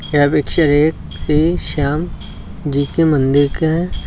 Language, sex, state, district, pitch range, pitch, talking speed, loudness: Hindi, male, Uttar Pradesh, Lucknow, 140-160 Hz, 150 Hz, 145 wpm, -15 LUFS